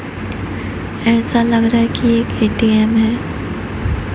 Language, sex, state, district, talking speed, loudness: Hindi, female, Odisha, Nuapada, 115 wpm, -16 LUFS